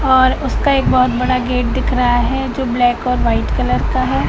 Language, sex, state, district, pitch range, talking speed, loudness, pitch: Hindi, female, Madhya Pradesh, Katni, 245-265 Hz, 225 wpm, -16 LUFS, 255 Hz